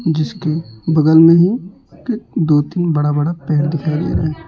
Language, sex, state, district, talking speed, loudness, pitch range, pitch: Hindi, male, West Bengal, Alipurduar, 175 wpm, -15 LUFS, 155-170 Hz, 160 Hz